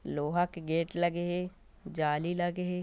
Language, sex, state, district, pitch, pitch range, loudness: Hindi, male, Chhattisgarh, Korba, 175 Hz, 165-180 Hz, -32 LUFS